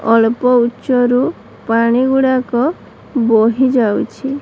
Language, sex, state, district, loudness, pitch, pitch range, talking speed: Odia, female, Odisha, Sambalpur, -14 LUFS, 250 Hz, 230-260 Hz, 95 wpm